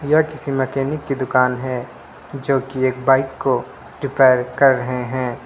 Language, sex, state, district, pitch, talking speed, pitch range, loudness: Hindi, male, Uttar Pradesh, Lucknow, 130 Hz, 165 wpm, 125-135 Hz, -19 LUFS